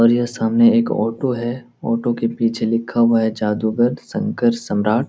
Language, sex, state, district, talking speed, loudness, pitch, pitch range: Hindi, male, Bihar, Jahanabad, 175 wpm, -18 LUFS, 115 Hz, 115-120 Hz